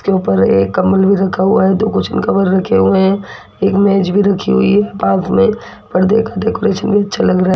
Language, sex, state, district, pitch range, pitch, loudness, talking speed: Hindi, female, Rajasthan, Jaipur, 180-205 Hz, 195 Hz, -13 LUFS, 230 wpm